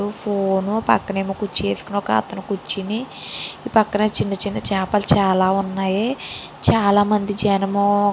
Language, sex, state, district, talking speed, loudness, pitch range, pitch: Telugu, female, Andhra Pradesh, Srikakulam, 135 wpm, -20 LUFS, 195-210 Hz, 200 Hz